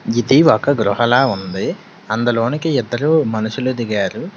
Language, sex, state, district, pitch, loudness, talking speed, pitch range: Telugu, male, Telangana, Hyderabad, 120 Hz, -16 LUFS, 125 wpm, 110-130 Hz